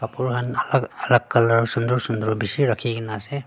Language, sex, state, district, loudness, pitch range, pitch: Nagamese, female, Nagaland, Dimapur, -21 LUFS, 110-125 Hz, 115 Hz